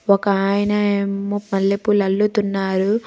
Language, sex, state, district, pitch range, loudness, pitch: Telugu, female, Telangana, Hyderabad, 195-205 Hz, -19 LUFS, 200 Hz